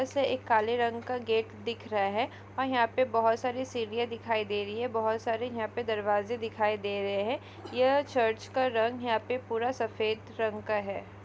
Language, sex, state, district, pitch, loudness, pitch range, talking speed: Hindi, female, Maharashtra, Aurangabad, 230 Hz, -30 LUFS, 220-245 Hz, 210 wpm